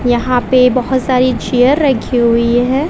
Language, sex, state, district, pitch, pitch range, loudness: Hindi, female, Bihar, West Champaran, 255 Hz, 245-260 Hz, -12 LUFS